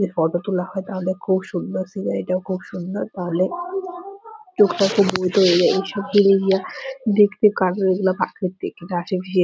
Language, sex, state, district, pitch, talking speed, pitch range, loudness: Bengali, female, West Bengal, Purulia, 190 Hz, 90 wpm, 185-205 Hz, -20 LUFS